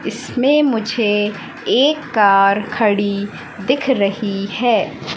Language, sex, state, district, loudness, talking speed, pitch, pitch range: Hindi, female, Madhya Pradesh, Katni, -16 LUFS, 95 wpm, 210 Hz, 200-250 Hz